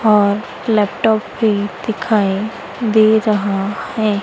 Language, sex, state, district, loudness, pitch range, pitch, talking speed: Hindi, female, Madhya Pradesh, Dhar, -16 LUFS, 200-220 Hz, 215 Hz, 100 wpm